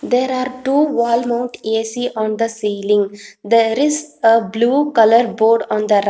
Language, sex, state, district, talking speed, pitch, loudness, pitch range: English, female, Telangana, Hyderabad, 185 wpm, 230 Hz, -16 LUFS, 220-255 Hz